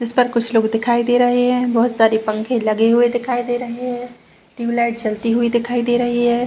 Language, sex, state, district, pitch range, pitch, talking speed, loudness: Hindi, female, Chhattisgarh, Rajnandgaon, 230-245 Hz, 240 Hz, 225 wpm, -17 LUFS